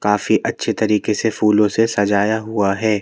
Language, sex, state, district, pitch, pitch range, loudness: Hindi, male, Madhya Pradesh, Bhopal, 105 Hz, 105-110 Hz, -17 LUFS